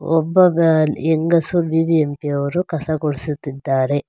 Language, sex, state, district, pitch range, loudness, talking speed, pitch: Kannada, female, Karnataka, Bangalore, 145-165 Hz, -18 LUFS, 115 wpm, 160 Hz